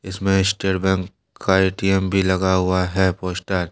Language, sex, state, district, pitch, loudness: Hindi, male, Jharkhand, Deoghar, 95 Hz, -20 LUFS